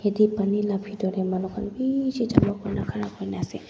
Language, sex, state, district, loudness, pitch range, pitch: Nagamese, female, Nagaland, Dimapur, -26 LUFS, 190-215 Hz, 205 Hz